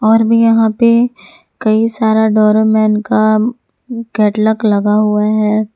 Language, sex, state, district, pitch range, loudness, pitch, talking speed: Hindi, female, Jharkhand, Ranchi, 215-225 Hz, -12 LUFS, 220 Hz, 125 wpm